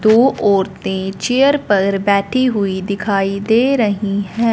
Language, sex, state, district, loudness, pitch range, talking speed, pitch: Hindi, female, Punjab, Fazilka, -16 LUFS, 195-230 Hz, 130 wpm, 205 Hz